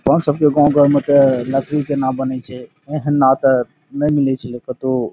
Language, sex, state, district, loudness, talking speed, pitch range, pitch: Maithili, male, Bihar, Saharsa, -16 LUFS, 220 wpm, 130-145 Hz, 135 Hz